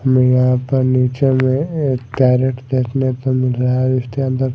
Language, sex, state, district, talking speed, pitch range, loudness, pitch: Hindi, male, Odisha, Malkangiri, 185 wpm, 125-130 Hz, -16 LUFS, 130 Hz